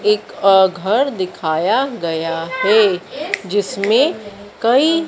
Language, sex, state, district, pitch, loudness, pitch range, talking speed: Hindi, female, Madhya Pradesh, Dhar, 200 Hz, -16 LUFS, 180-220 Hz, 95 wpm